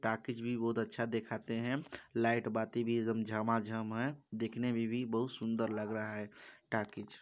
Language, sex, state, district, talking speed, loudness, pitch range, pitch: Hindi, male, Chhattisgarh, Balrampur, 175 wpm, -37 LUFS, 110-115 Hz, 115 Hz